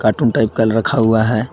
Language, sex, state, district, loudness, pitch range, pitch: Hindi, male, Jharkhand, Garhwa, -15 LUFS, 110-115 Hz, 110 Hz